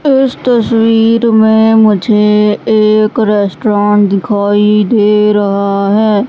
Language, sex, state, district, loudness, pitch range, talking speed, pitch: Hindi, female, Madhya Pradesh, Katni, -9 LUFS, 205-225 Hz, 95 wpm, 210 Hz